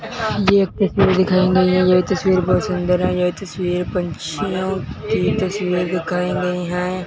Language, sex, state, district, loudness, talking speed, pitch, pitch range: Hindi, male, Punjab, Fazilka, -18 LUFS, 160 wpm, 185 Hz, 180-190 Hz